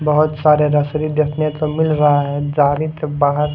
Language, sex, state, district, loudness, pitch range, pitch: Hindi, male, Odisha, Khordha, -16 LUFS, 145-155 Hz, 150 Hz